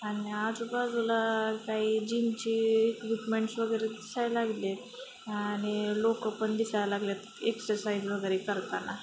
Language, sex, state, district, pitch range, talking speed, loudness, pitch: Marathi, female, Maharashtra, Sindhudurg, 210-225 Hz, 115 wpm, -31 LUFS, 220 Hz